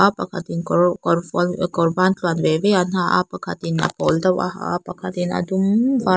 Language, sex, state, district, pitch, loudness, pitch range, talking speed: Mizo, female, Mizoram, Aizawl, 180 Hz, -20 LUFS, 170-185 Hz, 215 wpm